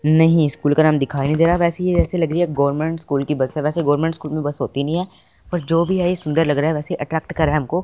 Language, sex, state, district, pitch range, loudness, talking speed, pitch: Hindi, male, Punjab, Fazilka, 150-170 Hz, -19 LUFS, 330 wpm, 155 Hz